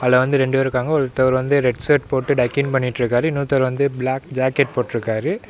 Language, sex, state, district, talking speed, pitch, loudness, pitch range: Tamil, male, Tamil Nadu, Namakkal, 185 wpm, 130 Hz, -19 LUFS, 125-140 Hz